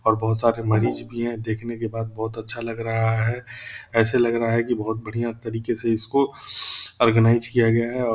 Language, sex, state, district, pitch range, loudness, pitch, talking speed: Hindi, male, Bihar, Purnia, 110-120 Hz, -23 LUFS, 115 Hz, 220 wpm